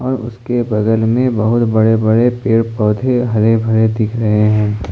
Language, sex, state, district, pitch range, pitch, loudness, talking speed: Hindi, male, Jharkhand, Ranchi, 110-120 Hz, 110 Hz, -14 LUFS, 170 wpm